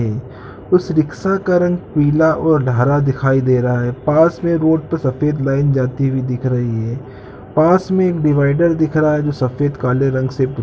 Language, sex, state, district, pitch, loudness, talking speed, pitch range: Hindi, male, Andhra Pradesh, Krishna, 140 Hz, -16 LUFS, 205 wpm, 130-160 Hz